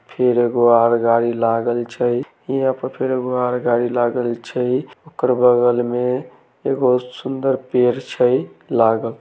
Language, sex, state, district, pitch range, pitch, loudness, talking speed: Maithili, male, Bihar, Samastipur, 120-125 Hz, 125 Hz, -18 LUFS, 135 wpm